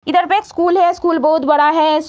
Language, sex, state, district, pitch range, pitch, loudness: Hindi, female, Bihar, Jamui, 310-355 Hz, 335 Hz, -14 LUFS